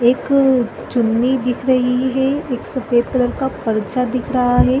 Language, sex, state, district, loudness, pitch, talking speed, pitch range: Hindi, female, Chhattisgarh, Bastar, -17 LUFS, 250 Hz, 160 wpm, 245-265 Hz